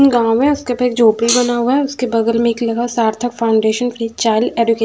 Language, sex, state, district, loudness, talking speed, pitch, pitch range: Hindi, female, Punjab, Fazilka, -15 LUFS, 245 wpm, 235 Hz, 230-245 Hz